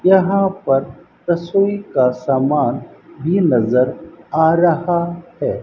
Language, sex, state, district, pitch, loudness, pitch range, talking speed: Hindi, male, Rajasthan, Bikaner, 170 Hz, -17 LUFS, 140-185 Hz, 105 wpm